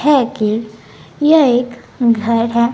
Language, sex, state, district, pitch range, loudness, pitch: Hindi, female, Bihar, West Champaran, 230-265 Hz, -14 LUFS, 240 Hz